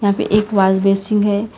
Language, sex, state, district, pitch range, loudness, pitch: Hindi, female, Karnataka, Bangalore, 195-210 Hz, -15 LUFS, 205 Hz